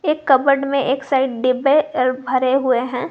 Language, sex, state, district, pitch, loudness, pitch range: Hindi, female, Jharkhand, Garhwa, 265 Hz, -17 LUFS, 255-275 Hz